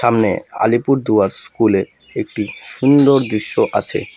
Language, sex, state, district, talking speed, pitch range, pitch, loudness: Bengali, male, West Bengal, Alipurduar, 100 wpm, 110-135 Hz, 120 Hz, -16 LUFS